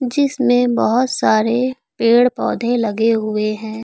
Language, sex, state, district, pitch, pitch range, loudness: Hindi, female, Uttar Pradesh, Lucknow, 240 Hz, 220-250 Hz, -16 LUFS